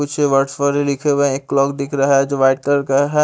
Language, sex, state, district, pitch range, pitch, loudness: Hindi, male, Haryana, Rohtak, 135-145 Hz, 140 Hz, -16 LUFS